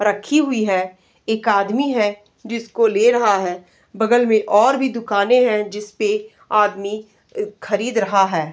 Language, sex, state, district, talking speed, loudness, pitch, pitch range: Hindi, female, Uttar Pradesh, Varanasi, 150 wpm, -18 LUFS, 215 Hz, 205-250 Hz